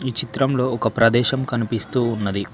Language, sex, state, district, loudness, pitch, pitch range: Telugu, male, Telangana, Mahabubabad, -20 LUFS, 120 Hz, 115-130 Hz